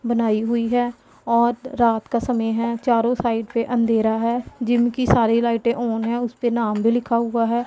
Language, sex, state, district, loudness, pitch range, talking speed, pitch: Hindi, female, Punjab, Pathankot, -20 LUFS, 230-240 Hz, 195 wpm, 235 Hz